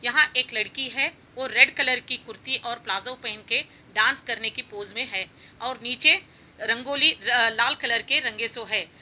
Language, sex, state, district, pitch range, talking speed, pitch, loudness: Hindi, female, Bihar, Saran, 225-260 Hz, 195 wpm, 240 Hz, -22 LUFS